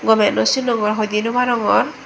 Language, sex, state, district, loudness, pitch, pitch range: Chakma, female, Tripura, Dhalai, -17 LUFS, 225 Hz, 215-240 Hz